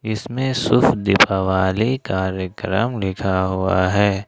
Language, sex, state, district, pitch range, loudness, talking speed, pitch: Hindi, male, Jharkhand, Ranchi, 95-110 Hz, -19 LUFS, 100 wpm, 95 Hz